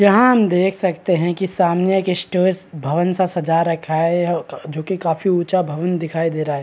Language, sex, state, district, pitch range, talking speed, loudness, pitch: Hindi, male, Bihar, Araria, 165-185 Hz, 215 wpm, -18 LUFS, 175 Hz